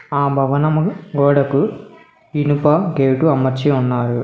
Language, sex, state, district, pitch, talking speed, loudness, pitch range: Telugu, male, Telangana, Hyderabad, 140 Hz, 100 wpm, -16 LUFS, 135-155 Hz